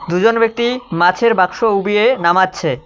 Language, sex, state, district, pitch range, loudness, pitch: Bengali, male, West Bengal, Cooch Behar, 180-230 Hz, -14 LUFS, 200 Hz